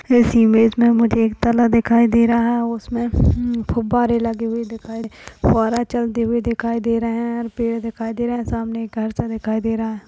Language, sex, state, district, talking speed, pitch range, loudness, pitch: Hindi, female, Maharashtra, Chandrapur, 220 wpm, 225-235 Hz, -18 LUFS, 230 Hz